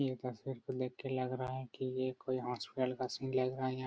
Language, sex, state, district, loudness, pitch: Hindi, male, Bihar, Araria, -39 LUFS, 130 Hz